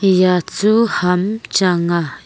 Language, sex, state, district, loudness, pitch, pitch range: Wancho, female, Arunachal Pradesh, Longding, -16 LUFS, 185 Hz, 180-200 Hz